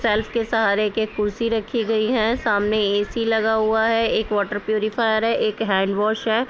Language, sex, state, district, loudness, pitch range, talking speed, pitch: Hindi, female, Bihar, Purnia, -21 LUFS, 210-225 Hz, 195 wpm, 220 Hz